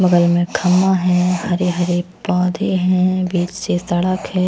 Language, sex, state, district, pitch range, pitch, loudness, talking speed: Hindi, female, Himachal Pradesh, Shimla, 175-185 Hz, 180 Hz, -17 LUFS, 160 wpm